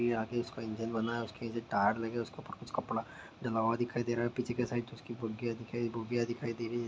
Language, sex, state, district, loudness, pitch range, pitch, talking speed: Hindi, male, Bihar, Sitamarhi, -36 LUFS, 115-120 Hz, 115 Hz, 270 wpm